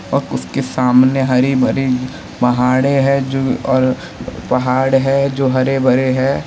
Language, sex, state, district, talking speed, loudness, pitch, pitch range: Hindi, male, Uttar Pradesh, Lalitpur, 120 wpm, -15 LUFS, 130 Hz, 130-135 Hz